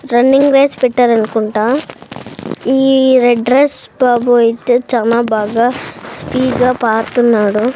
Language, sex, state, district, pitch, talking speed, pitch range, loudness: Telugu, female, Andhra Pradesh, Sri Satya Sai, 245 Hz, 100 wpm, 230-260 Hz, -12 LUFS